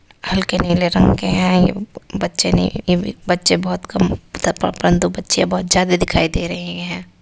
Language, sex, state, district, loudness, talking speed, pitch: Hindi, female, Uttar Pradesh, Varanasi, -17 LUFS, 160 wpm, 180 Hz